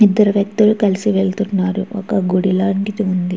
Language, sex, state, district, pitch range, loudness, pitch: Telugu, female, Andhra Pradesh, Chittoor, 190-205 Hz, -16 LUFS, 200 Hz